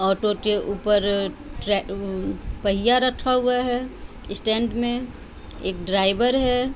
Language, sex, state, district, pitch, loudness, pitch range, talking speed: Hindi, female, Bihar, Patna, 210 Hz, -22 LUFS, 195-250 Hz, 125 wpm